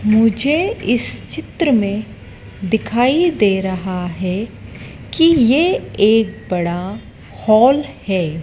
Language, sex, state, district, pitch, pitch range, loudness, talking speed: Hindi, female, Madhya Pradesh, Dhar, 215 Hz, 185-250 Hz, -16 LUFS, 100 wpm